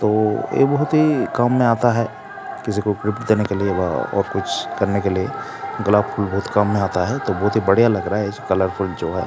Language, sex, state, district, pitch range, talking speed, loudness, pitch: Hindi, male, Uttar Pradesh, Jalaun, 100-115 Hz, 250 wpm, -19 LUFS, 105 Hz